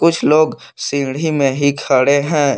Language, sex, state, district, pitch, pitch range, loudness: Hindi, male, Jharkhand, Palamu, 140 Hz, 135-155 Hz, -15 LUFS